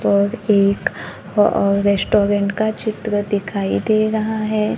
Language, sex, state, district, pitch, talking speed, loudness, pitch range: Hindi, female, Maharashtra, Gondia, 205 Hz, 125 wpm, -18 LUFS, 200-215 Hz